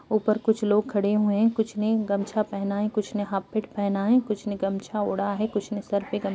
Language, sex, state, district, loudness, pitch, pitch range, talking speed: Hindi, female, Uttar Pradesh, Jalaun, -26 LUFS, 210 Hz, 200-215 Hz, 245 wpm